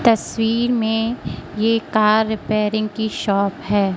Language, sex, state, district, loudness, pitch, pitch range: Hindi, female, Madhya Pradesh, Katni, -19 LUFS, 220 Hz, 210-225 Hz